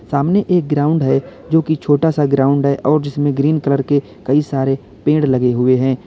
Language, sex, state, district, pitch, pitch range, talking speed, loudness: Hindi, male, Uttar Pradesh, Lalitpur, 140 Hz, 135-150 Hz, 210 wpm, -16 LUFS